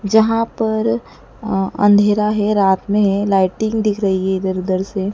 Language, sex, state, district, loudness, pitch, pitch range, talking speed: Hindi, female, Madhya Pradesh, Dhar, -16 LUFS, 200 Hz, 190-210 Hz, 175 wpm